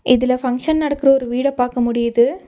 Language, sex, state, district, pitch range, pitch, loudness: Tamil, female, Tamil Nadu, Nilgiris, 245-275 Hz, 250 Hz, -17 LUFS